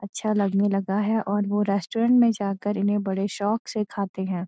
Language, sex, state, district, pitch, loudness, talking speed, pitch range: Hindi, female, Uttarakhand, Uttarkashi, 205 Hz, -24 LUFS, 200 wpm, 195-210 Hz